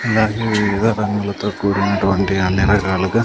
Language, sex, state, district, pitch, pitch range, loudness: Telugu, male, Andhra Pradesh, Sri Satya Sai, 100 Hz, 95-110 Hz, -17 LUFS